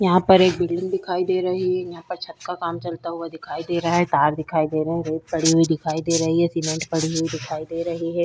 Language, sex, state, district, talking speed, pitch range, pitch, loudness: Hindi, female, Bihar, Vaishali, 275 wpm, 160-180 Hz, 170 Hz, -22 LUFS